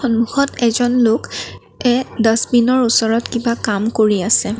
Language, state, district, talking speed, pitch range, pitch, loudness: Assamese, Assam, Kamrup Metropolitan, 130 wpm, 225-245 Hz, 235 Hz, -16 LUFS